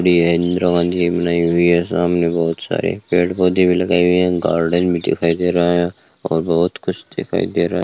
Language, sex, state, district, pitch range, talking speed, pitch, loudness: Hindi, male, Rajasthan, Bikaner, 85-90 Hz, 200 wpm, 85 Hz, -17 LUFS